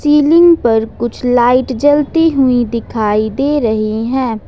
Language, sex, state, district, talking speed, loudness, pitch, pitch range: Hindi, female, Jharkhand, Ranchi, 135 wpm, -12 LUFS, 250 Hz, 225-290 Hz